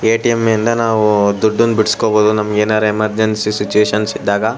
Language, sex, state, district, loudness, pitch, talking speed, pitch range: Kannada, male, Karnataka, Shimoga, -14 LUFS, 110 Hz, 130 wpm, 105-110 Hz